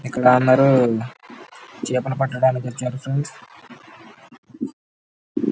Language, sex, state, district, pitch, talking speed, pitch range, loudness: Telugu, male, Andhra Pradesh, Anantapur, 125 Hz, 75 wpm, 125-130 Hz, -19 LUFS